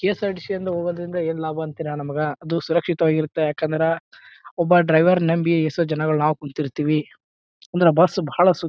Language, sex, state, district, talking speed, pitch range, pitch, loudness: Kannada, male, Karnataka, Bijapur, 130 wpm, 155-175 Hz, 165 Hz, -21 LUFS